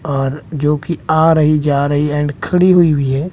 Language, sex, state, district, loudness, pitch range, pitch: Hindi, male, Bihar, West Champaran, -14 LUFS, 145-160 Hz, 150 Hz